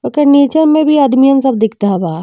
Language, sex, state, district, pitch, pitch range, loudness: Bhojpuri, female, Uttar Pradesh, Deoria, 275 Hz, 220-295 Hz, -10 LUFS